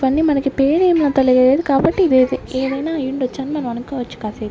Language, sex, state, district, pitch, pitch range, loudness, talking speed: Telugu, female, Andhra Pradesh, Sri Satya Sai, 270 Hz, 255-300 Hz, -17 LUFS, 215 wpm